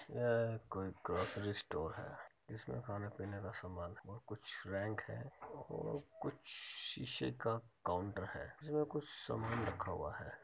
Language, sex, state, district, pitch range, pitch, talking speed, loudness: Hindi, male, Uttar Pradesh, Muzaffarnagar, 100-120 Hz, 110 Hz, 145 wpm, -43 LUFS